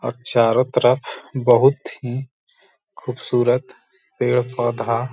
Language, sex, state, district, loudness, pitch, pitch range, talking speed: Hindi, male, Bihar, Gaya, -19 LUFS, 125 Hz, 120-130 Hz, 95 wpm